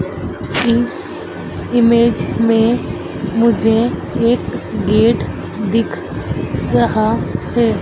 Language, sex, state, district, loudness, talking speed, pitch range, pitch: Hindi, female, Madhya Pradesh, Dhar, -16 LUFS, 70 wpm, 225-240 Hz, 235 Hz